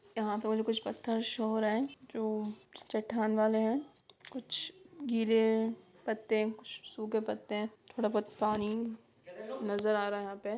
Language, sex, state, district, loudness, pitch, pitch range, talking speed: Hindi, female, Bihar, Sitamarhi, -34 LUFS, 220 Hz, 215-230 Hz, 165 wpm